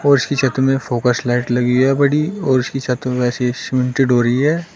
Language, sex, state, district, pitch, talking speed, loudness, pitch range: Hindi, male, Uttar Pradesh, Shamli, 130 Hz, 240 wpm, -16 LUFS, 125-140 Hz